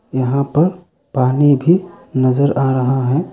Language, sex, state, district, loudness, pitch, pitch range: Hindi, male, Arunachal Pradesh, Lower Dibang Valley, -16 LUFS, 140 Hz, 130-160 Hz